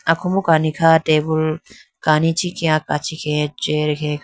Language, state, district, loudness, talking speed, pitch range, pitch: Idu Mishmi, Arunachal Pradesh, Lower Dibang Valley, -18 LUFS, 155 wpm, 150-165 Hz, 155 Hz